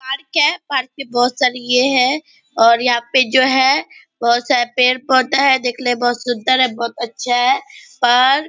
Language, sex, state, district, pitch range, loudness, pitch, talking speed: Hindi, female, Bihar, Purnia, 245-270 Hz, -15 LUFS, 255 Hz, 200 wpm